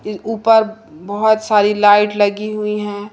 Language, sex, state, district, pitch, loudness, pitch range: Hindi, female, Madhya Pradesh, Umaria, 210 Hz, -15 LUFS, 205-220 Hz